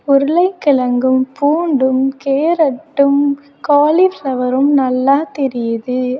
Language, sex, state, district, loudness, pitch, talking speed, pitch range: Tamil, female, Tamil Nadu, Kanyakumari, -14 LUFS, 275 Hz, 60 wpm, 260-290 Hz